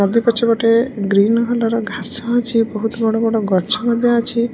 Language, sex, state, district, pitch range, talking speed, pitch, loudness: Odia, female, Odisha, Malkangiri, 220-235 Hz, 170 wpm, 230 Hz, -16 LUFS